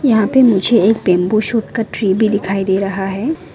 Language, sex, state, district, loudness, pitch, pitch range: Hindi, female, Arunachal Pradesh, Lower Dibang Valley, -14 LUFS, 215 Hz, 195-230 Hz